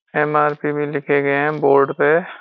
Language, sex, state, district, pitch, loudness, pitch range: Hindi, male, Uttarakhand, Uttarkashi, 145 Hz, -17 LUFS, 140-150 Hz